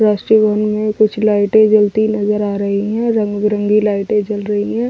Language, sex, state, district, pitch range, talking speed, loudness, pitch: Hindi, female, Delhi, New Delhi, 205-215 Hz, 195 wpm, -15 LUFS, 210 Hz